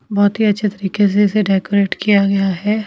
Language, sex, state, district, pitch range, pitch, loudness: Hindi, female, Himachal Pradesh, Shimla, 195-210 Hz, 205 Hz, -15 LUFS